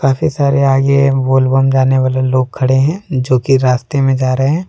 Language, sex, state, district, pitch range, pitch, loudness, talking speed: Hindi, male, Jharkhand, Deoghar, 130-140 Hz, 135 Hz, -13 LUFS, 215 wpm